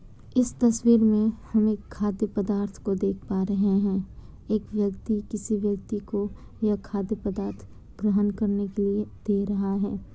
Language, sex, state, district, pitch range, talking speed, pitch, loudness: Hindi, female, Bihar, Kishanganj, 200-215 Hz, 160 wpm, 205 Hz, -26 LUFS